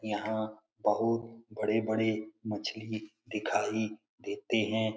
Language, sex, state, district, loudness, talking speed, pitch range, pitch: Hindi, male, Bihar, Lakhisarai, -33 LUFS, 85 wpm, 105-110 Hz, 110 Hz